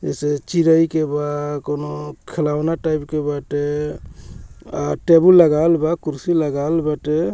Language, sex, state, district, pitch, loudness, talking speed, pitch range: Bhojpuri, male, Bihar, Muzaffarpur, 150 Hz, -18 LUFS, 130 wpm, 145-165 Hz